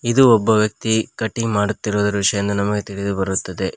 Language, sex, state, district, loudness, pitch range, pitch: Kannada, male, Karnataka, Koppal, -19 LUFS, 100-110 Hz, 105 Hz